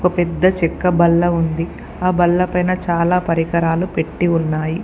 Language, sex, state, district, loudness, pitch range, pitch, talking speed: Telugu, female, Telangana, Komaram Bheem, -17 LUFS, 165-180 Hz, 175 Hz, 135 wpm